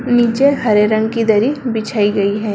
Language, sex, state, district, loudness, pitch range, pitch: Hindi, female, Bihar, Bhagalpur, -15 LUFS, 210-240 Hz, 220 Hz